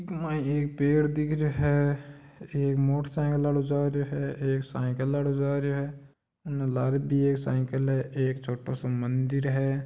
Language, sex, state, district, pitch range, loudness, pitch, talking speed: Marwari, male, Rajasthan, Nagaur, 135-145 Hz, -28 LUFS, 140 Hz, 180 wpm